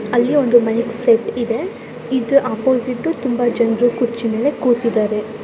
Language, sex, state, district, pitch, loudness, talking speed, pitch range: Kannada, female, Karnataka, Belgaum, 240 Hz, -17 LUFS, 130 wpm, 230-250 Hz